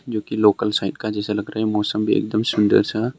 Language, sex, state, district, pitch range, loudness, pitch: Hindi, male, Arunachal Pradesh, Longding, 105-110 Hz, -20 LUFS, 105 Hz